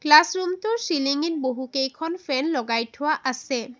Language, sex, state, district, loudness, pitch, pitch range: Assamese, female, Assam, Sonitpur, -24 LUFS, 285 Hz, 260-325 Hz